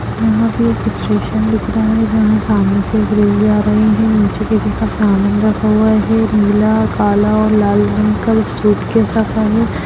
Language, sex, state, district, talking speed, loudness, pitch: Hindi, female, Bihar, Lakhisarai, 190 wpm, -13 LUFS, 210 Hz